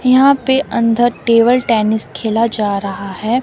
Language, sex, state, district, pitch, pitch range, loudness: Hindi, female, Himachal Pradesh, Shimla, 230 Hz, 215-250 Hz, -14 LUFS